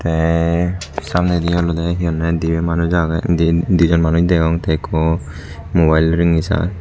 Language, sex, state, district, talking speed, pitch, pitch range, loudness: Chakma, male, Tripura, Dhalai, 140 wpm, 85 Hz, 80-85 Hz, -16 LUFS